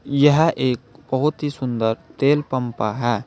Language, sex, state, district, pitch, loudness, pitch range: Hindi, male, Uttar Pradesh, Saharanpur, 130 Hz, -20 LUFS, 120-145 Hz